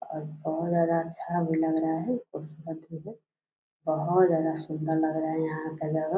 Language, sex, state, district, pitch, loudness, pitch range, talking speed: Hindi, female, Bihar, Purnia, 160 Hz, -28 LUFS, 155-165 Hz, 195 wpm